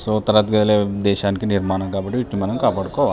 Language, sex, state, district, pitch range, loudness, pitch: Telugu, male, Telangana, Nalgonda, 100-105 Hz, -19 LUFS, 100 Hz